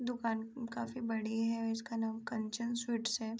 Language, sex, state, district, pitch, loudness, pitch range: Hindi, female, Uttar Pradesh, Hamirpur, 230 Hz, -38 LUFS, 225-235 Hz